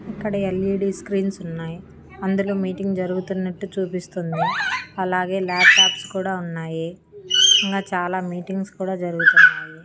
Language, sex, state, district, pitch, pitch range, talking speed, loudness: Telugu, female, Andhra Pradesh, Annamaya, 190 Hz, 180-195 Hz, 105 wpm, -19 LUFS